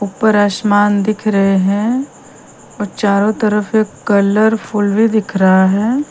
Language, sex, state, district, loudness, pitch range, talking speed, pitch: Hindi, female, Punjab, Kapurthala, -13 LUFS, 200-220 Hz, 130 wpm, 210 Hz